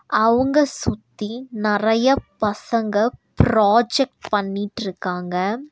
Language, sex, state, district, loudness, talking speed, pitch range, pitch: Tamil, female, Tamil Nadu, Nilgiris, -20 LUFS, 65 wpm, 200-240 Hz, 215 Hz